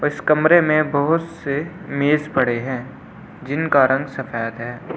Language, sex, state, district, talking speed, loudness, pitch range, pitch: Hindi, male, Delhi, New Delhi, 145 wpm, -19 LUFS, 130-155 Hz, 145 Hz